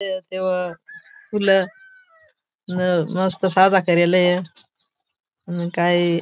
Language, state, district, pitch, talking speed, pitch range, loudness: Bhili, Maharashtra, Dhule, 185 Hz, 85 wpm, 175-195 Hz, -19 LUFS